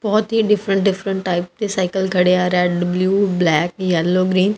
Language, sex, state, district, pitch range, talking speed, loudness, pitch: Punjabi, female, Punjab, Kapurthala, 180-200 Hz, 195 wpm, -17 LUFS, 185 Hz